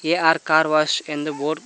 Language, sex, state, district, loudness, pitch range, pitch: Kannada, male, Karnataka, Koppal, -19 LUFS, 155-160 Hz, 155 Hz